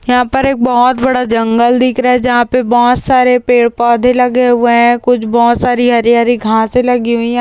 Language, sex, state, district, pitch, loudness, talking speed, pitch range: Hindi, female, Uttarakhand, Tehri Garhwal, 245 Hz, -10 LUFS, 220 wpm, 235-250 Hz